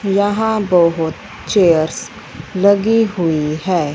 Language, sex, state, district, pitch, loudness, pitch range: Hindi, female, Punjab, Fazilka, 180 Hz, -15 LUFS, 160-205 Hz